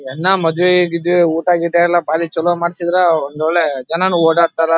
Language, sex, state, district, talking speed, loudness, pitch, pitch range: Kannada, male, Karnataka, Dharwad, 165 wpm, -15 LUFS, 170 Hz, 165-175 Hz